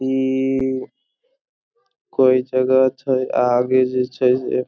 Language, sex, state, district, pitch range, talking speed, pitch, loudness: Maithili, male, Bihar, Samastipur, 130-135 Hz, 115 wpm, 130 Hz, -18 LUFS